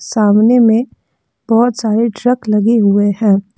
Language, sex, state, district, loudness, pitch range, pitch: Hindi, female, Jharkhand, Deoghar, -12 LUFS, 210-235 Hz, 220 Hz